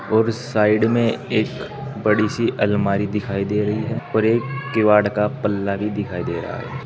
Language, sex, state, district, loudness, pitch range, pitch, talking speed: Hindi, male, Uttar Pradesh, Saharanpur, -20 LUFS, 105-115 Hz, 105 Hz, 185 wpm